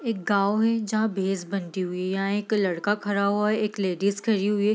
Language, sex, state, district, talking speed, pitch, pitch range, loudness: Hindi, female, Bihar, East Champaran, 215 wpm, 200 Hz, 195-215 Hz, -25 LUFS